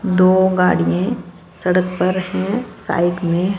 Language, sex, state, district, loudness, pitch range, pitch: Hindi, female, Punjab, Fazilka, -17 LUFS, 175-185 Hz, 185 Hz